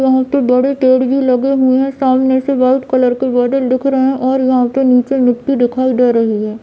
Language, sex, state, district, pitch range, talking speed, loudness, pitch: Hindi, female, Bihar, Bhagalpur, 250-265 Hz, 225 wpm, -13 LUFS, 260 Hz